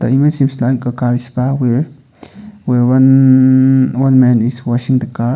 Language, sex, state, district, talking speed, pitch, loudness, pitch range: English, male, Sikkim, Gangtok, 155 wpm, 130 Hz, -12 LUFS, 125-135 Hz